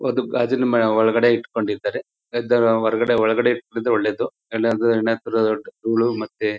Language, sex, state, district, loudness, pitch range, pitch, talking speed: Kannada, male, Karnataka, Chamarajanagar, -20 LUFS, 110-120 Hz, 115 Hz, 120 wpm